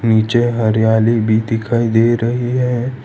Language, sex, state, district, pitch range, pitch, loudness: Hindi, male, Gujarat, Valsad, 110-120 Hz, 115 Hz, -15 LUFS